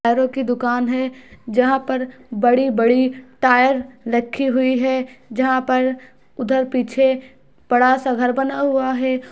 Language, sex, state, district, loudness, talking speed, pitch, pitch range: Hindi, female, Bihar, Muzaffarpur, -18 LUFS, 135 wpm, 255 Hz, 250-260 Hz